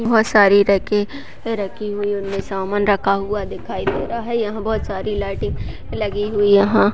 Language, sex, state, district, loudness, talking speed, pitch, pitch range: Hindi, female, Chhattisgarh, Bastar, -19 LUFS, 190 wpm, 205 Hz, 200-215 Hz